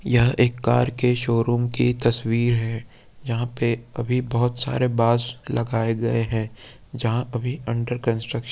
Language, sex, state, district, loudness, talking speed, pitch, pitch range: Hindi, male, Chhattisgarh, Korba, -21 LUFS, 140 wpm, 120 Hz, 115-125 Hz